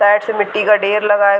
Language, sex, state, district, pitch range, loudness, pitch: Hindi, female, Bihar, Gaya, 205-210 Hz, -14 LUFS, 205 Hz